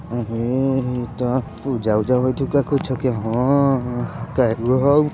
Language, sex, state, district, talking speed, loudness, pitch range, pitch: Bajjika, male, Bihar, Vaishali, 45 wpm, -20 LUFS, 120-135 Hz, 130 Hz